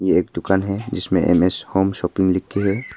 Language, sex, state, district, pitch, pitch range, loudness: Hindi, male, Arunachal Pradesh, Papum Pare, 95 Hz, 95-100 Hz, -19 LUFS